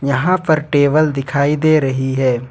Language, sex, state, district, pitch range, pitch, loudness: Hindi, male, Jharkhand, Ranchi, 135-155 Hz, 145 Hz, -15 LUFS